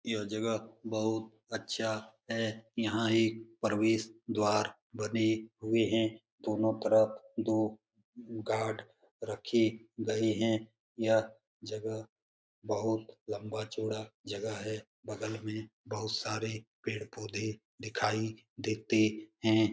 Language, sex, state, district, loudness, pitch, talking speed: Hindi, male, Bihar, Lakhisarai, -34 LUFS, 110 Hz, 105 wpm